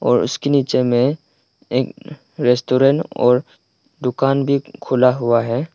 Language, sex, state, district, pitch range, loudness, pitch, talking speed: Hindi, male, Arunachal Pradesh, Lower Dibang Valley, 125-140 Hz, -18 LUFS, 130 Hz, 125 wpm